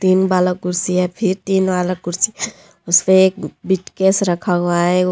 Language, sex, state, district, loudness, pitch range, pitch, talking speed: Hindi, female, Jharkhand, Deoghar, -17 LUFS, 180-190 Hz, 180 Hz, 165 wpm